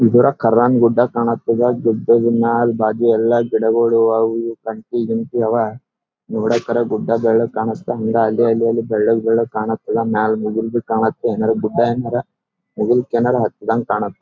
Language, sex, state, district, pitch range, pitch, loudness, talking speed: Kannada, male, Karnataka, Gulbarga, 110-120 Hz, 115 Hz, -17 LUFS, 125 wpm